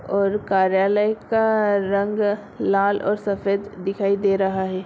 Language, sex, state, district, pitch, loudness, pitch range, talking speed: Hindi, female, Bihar, Sitamarhi, 200 Hz, -21 LUFS, 195-205 Hz, 135 wpm